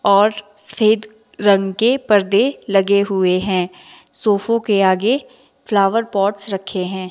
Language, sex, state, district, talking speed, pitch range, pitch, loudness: Hindi, female, Himachal Pradesh, Shimla, 125 wpm, 195-215 Hz, 200 Hz, -17 LUFS